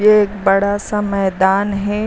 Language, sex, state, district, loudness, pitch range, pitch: Hindi, female, Uttar Pradesh, Lucknow, -16 LUFS, 195-210 Hz, 200 Hz